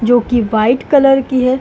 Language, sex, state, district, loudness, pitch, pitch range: Hindi, female, Uttar Pradesh, Hamirpur, -12 LUFS, 250 Hz, 235-265 Hz